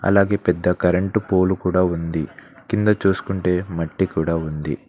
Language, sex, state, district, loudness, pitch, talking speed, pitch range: Telugu, male, Telangana, Mahabubabad, -20 LUFS, 90 Hz, 135 wpm, 85-100 Hz